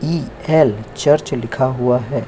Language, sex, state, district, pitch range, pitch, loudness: Hindi, male, Chhattisgarh, Korba, 125-150 Hz, 135 Hz, -17 LUFS